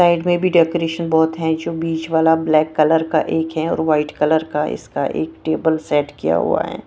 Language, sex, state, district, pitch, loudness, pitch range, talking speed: Hindi, female, Punjab, Kapurthala, 160 Hz, -18 LUFS, 155-165 Hz, 225 wpm